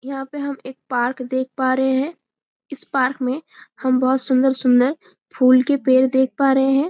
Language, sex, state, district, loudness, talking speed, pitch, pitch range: Hindi, female, Chhattisgarh, Bastar, -19 LUFS, 190 wpm, 265 Hz, 255-275 Hz